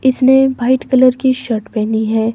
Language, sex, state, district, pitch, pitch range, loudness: Hindi, female, Himachal Pradesh, Shimla, 255 Hz, 220-260 Hz, -13 LUFS